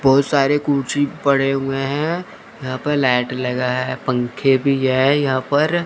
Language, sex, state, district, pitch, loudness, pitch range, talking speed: Hindi, male, Chandigarh, Chandigarh, 135 Hz, -18 LUFS, 130-145 Hz, 165 wpm